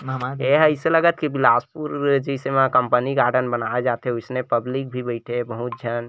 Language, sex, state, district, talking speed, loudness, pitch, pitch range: Chhattisgarhi, male, Chhattisgarh, Bilaspur, 175 wpm, -21 LUFS, 125 Hz, 120-140 Hz